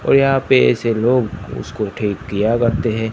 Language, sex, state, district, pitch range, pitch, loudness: Hindi, male, Gujarat, Gandhinagar, 105-120 Hz, 110 Hz, -17 LUFS